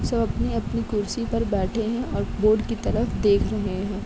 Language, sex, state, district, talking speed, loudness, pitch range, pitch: Hindi, female, Uttar Pradesh, Jalaun, 190 wpm, -24 LUFS, 200-230 Hz, 215 Hz